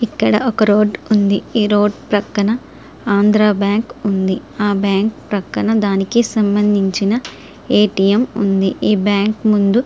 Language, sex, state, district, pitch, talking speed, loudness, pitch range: Telugu, female, Andhra Pradesh, Srikakulam, 210 Hz, 90 wpm, -15 LUFS, 200-220 Hz